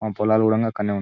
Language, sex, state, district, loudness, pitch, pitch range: Telugu, male, Telangana, Nalgonda, -20 LUFS, 110 Hz, 105-110 Hz